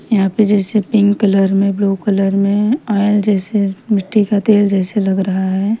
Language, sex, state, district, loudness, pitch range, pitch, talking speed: Hindi, female, Punjab, Pathankot, -14 LUFS, 195-210 Hz, 200 Hz, 185 wpm